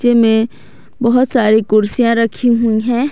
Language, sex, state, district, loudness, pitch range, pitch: Hindi, female, Jharkhand, Garhwa, -13 LUFS, 220-245 Hz, 230 Hz